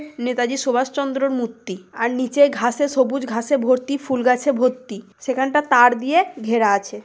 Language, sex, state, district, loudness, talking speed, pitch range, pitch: Bengali, female, West Bengal, Purulia, -19 LUFS, 145 wpm, 235-275 Hz, 255 Hz